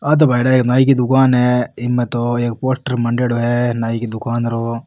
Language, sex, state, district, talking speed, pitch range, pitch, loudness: Rajasthani, male, Rajasthan, Nagaur, 220 wpm, 120-125 Hz, 120 Hz, -16 LUFS